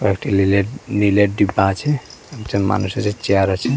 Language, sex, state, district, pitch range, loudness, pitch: Bengali, male, Assam, Hailakandi, 95-110 Hz, -18 LUFS, 100 Hz